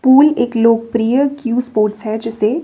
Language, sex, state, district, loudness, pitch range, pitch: Hindi, female, Himachal Pradesh, Shimla, -15 LUFS, 225-260 Hz, 230 Hz